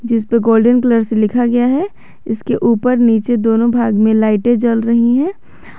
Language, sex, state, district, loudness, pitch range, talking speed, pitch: Hindi, male, Jharkhand, Garhwa, -13 LUFS, 225-240 Hz, 185 wpm, 235 Hz